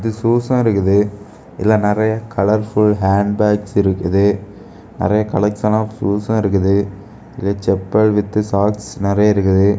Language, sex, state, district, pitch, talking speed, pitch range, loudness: Tamil, male, Tamil Nadu, Kanyakumari, 105 Hz, 125 wpm, 100-105 Hz, -16 LUFS